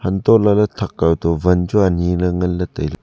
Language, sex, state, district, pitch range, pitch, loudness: Wancho, male, Arunachal Pradesh, Longding, 90-105 Hz, 90 Hz, -16 LUFS